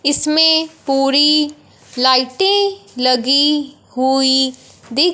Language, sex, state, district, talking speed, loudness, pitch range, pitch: Hindi, male, Punjab, Fazilka, 70 wpm, -14 LUFS, 260-310 Hz, 280 Hz